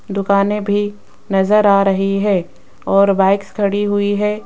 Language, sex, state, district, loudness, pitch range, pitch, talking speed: Hindi, female, Rajasthan, Jaipur, -15 LUFS, 195-205 Hz, 200 Hz, 150 wpm